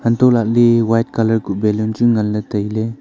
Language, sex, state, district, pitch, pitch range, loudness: Wancho, male, Arunachal Pradesh, Longding, 115 Hz, 105-115 Hz, -16 LUFS